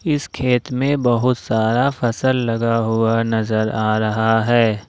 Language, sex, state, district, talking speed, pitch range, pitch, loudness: Hindi, male, Jharkhand, Ranchi, 145 wpm, 110-125 Hz, 115 Hz, -18 LUFS